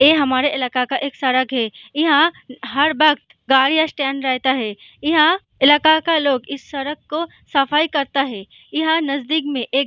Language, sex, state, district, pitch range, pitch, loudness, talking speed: Hindi, female, Bihar, Jahanabad, 265-305 Hz, 280 Hz, -18 LUFS, 195 wpm